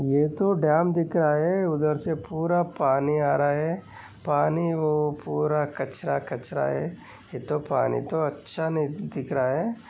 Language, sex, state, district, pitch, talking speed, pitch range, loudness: Hindi, male, Maharashtra, Aurangabad, 150 Hz, 170 wpm, 145-165 Hz, -25 LUFS